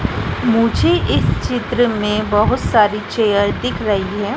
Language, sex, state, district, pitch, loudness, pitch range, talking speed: Hindi, female, Madhya Pradesh, Dhar, 210 Hz, -16 LUFS, 205-220 Hz, 135 wpm